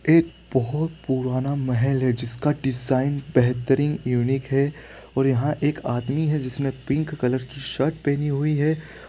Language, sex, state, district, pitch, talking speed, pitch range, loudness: Hindi, male, Bihar, East Champaran, 135 Hz, 150 wpm, 130-150 Hz, -23 LUFS